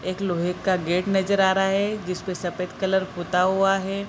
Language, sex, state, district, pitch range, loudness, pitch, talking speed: Hindi, female, Bihar, Sitamarhi, 180-195 Hz, -23 LUFS, 190 Hz, 220 wpm